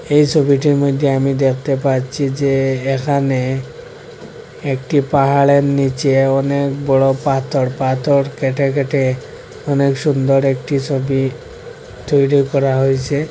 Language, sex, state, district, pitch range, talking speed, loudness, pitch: Bengali, male, Assam, Hailakandi, 135-140 Hz, 110 wpm, -16 LUFS, 135 Hz